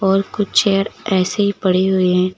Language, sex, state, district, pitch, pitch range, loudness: Hindi, female, Uttar Pradesh, Lucknow, 195 Hz, 185-200 Hz, -17 LUFS